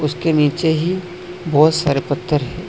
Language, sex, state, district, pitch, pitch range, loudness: Hindi, male, Assam, Hailakandi, 160 Hz, 150-180 Hz, -17 LUFS